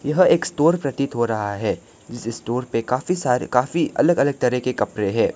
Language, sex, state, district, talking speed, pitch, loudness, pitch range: Hindi, male, Arunachal Pradesh, Lower Dibang Valley, 210 wpm, 125 Hz, -21 LUFS, 120-150 Hz